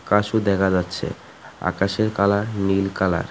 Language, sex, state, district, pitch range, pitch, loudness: Bengali, male, Tripura, West Tripura, 95-105 Hz, 100 Hz, -21 LUFS